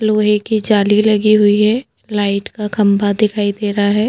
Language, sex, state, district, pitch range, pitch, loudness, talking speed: Hindi, female, Chhattisgarh, Jashpur, 205-215 Hz, 210 Hz, -14 LUFS, 190 wpm